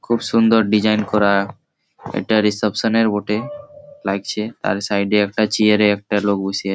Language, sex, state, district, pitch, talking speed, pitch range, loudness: Bengali, male, West Bengal, Malda, 105 Hz, 140 wpm, 100-110 Hz, -18 LUFS